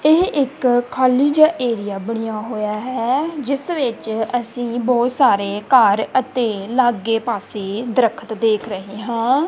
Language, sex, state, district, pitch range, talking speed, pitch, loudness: Punjabi, female, Punjab, Kapurthala, 220-260 Hz, 135 wpm, 240 Hz, -18 LUFS